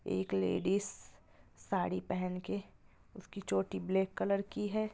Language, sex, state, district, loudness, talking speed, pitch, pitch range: Hindi, female, Bihar, Gopalganj, -36 LUFS, 135 wpm, 190 Hz, 180-200 Hz